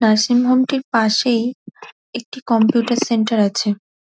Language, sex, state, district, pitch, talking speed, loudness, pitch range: Bengali, female, West Bengal, Dakshin Dinajpur, 235 Hz, 135 wpm, -17 LUFS, 220-250 Hz